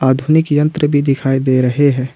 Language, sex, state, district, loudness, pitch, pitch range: Hindi, male, Jharkhand, Ranchi, -14 LUFS, 140 Hz, 130-145 Hz